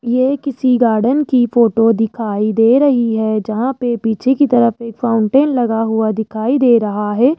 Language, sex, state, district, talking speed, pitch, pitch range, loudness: Hindi, male, Rajasthan, Jaipur, 180 wpm, 235 Hz, 220-255 Hz, -14 LUFS